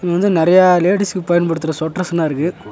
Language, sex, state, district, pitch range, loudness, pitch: Tamil, male, Tamil Nadu, Nilgiris, 165-185 Hz, -15 LUFS, 175 Hz